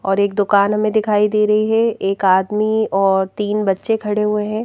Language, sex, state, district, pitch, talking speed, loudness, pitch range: Hindi, female, Madhya Pradesh, Bhopal, 210 Hz, 205 wpm, -16 LUFS, 195-215 Hz